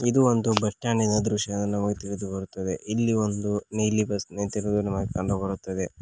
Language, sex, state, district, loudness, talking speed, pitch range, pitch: Kannada, male, Karnataka, Koppal, -26 LUFS, 150 wpm, 100-110 Hz, 105 Hz